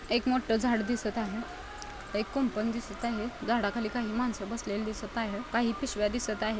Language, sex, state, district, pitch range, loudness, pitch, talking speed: Marathi, female, Maharashtra, Chandrapur, 215-240 Hz, -32 LUFS, 230 Hz, 175 wpm